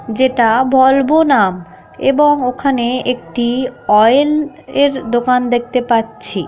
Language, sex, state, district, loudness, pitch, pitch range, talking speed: Bengali, female, West Bengal, Malda, -14 LUFS, 250 Hz, 235-275 Hz, 110 wpm